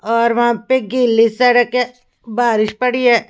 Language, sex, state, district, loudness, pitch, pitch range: Hindi, female, Haryana, Rohtak, -15 LUFS, 240 Hz, 230-250 Hz